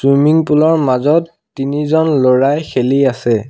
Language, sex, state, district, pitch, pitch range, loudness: Assamese, male, Assam, Sonitpur, 145 Hz, 130-160 Hz, -13 LUFS